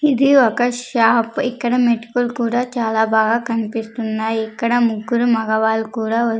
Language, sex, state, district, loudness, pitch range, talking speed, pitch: Telugu, female, Andhra Pradesh, Sri Satya Sai, -18 LUFS, 225-245 Hz, 120 wpm, 230 Hz